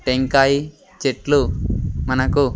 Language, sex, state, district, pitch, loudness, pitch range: Telugu, male, Andhra Pradesh, Sri Satya Sai, 135 Hz, -19 LUFS, 105-140 Hz